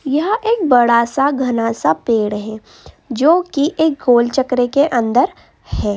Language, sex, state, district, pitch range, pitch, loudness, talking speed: Hindi, female, Uttar Pradesh, Hamirpur, 235-295 Hz, 255 Hz, -15 LUFS, 140 wpm